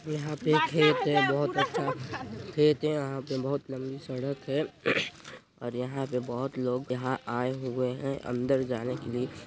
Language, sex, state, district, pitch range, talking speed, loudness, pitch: Hindi, male, Chhattisgarh, Sarguja, 125-140 Hz, 170 wpm, -30 LUFS, 135 Hz